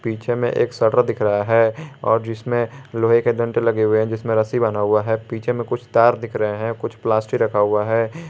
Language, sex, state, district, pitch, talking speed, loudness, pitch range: Hindi, male, Jharkhand, Garhwa, 115 Hz, 230 wpm, -19 LUFS, 110-120 Hz